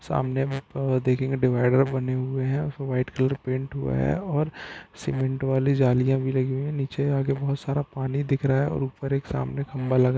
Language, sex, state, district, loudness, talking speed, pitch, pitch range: Hindi, male, Bihar, Saharsa, -25 LUFS, 205 wpm, 135 Hz, 130-140 Hz